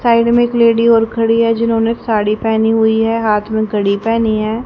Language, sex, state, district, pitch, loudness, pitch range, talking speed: Hindi, female, Haryana, Rohtak, 225 Hz, -13 LUFS, 220-230 Hz, 220 wpm